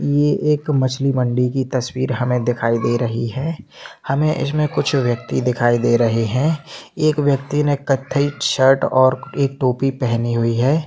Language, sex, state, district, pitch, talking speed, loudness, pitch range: Hindi, male, Jharkhand, Jamtara, 130 Hz, 145 wpm, -18 LUFS, 120-145 Hz